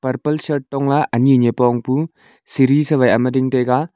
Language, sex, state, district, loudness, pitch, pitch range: Wancho, male, Arunachal Pradesh, Longding, -16 LUFS, 130 Hz, 125-145 Hz